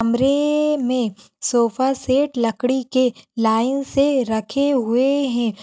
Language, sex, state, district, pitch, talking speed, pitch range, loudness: Hindi, female, Uttar Pradesh, Hamirpur, 255 Hz, 115 wpm, 235-275 Hz, -19 LUFS